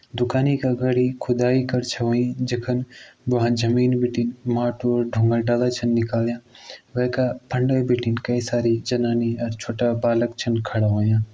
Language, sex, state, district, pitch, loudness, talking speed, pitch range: Garhwali, male, Uttarakhand, Tehri Garhwal, 120 Hz, -22 LUFS, 155 wpm, 115-125 Hz